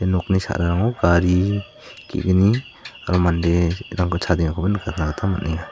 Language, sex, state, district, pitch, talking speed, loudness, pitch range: Garo, male, Meghalaya, South Garo Hills, 90 Hz, 115 wpm, -20 LUFS, 85-100 Hz